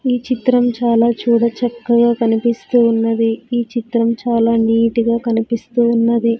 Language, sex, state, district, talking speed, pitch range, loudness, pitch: Telugu, female, Andhra Pradesh, Sri Satya Sai, 130 wpm, 230-240 Hz, -15 LUFS, 235 Hz